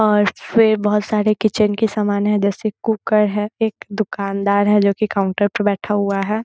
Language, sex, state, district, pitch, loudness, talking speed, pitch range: Hindi, female, Bihar, Muzaffarpur, 210 Hz, -18 LUFS, 195 wpm, 205-215 Hz